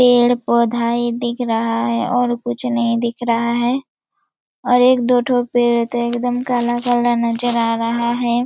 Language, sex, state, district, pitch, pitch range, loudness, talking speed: Hindi, female, Chhattisgarh, Raigarh, 240 Hz, 235-245 Hz, -17 LUFS, 165 wpm